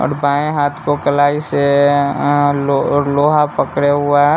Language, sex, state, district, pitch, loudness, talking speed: Hindi, male, Bihar, West Champaran, 145 Hz, -14 LUFS, 165 wpm